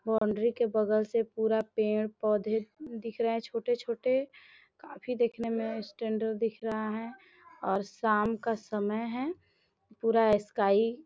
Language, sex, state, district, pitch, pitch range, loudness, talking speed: Hindi, female, Bihar, Gopalganj, 225 Hz, 215-235 Hz, -31 LUFS, 135 wpm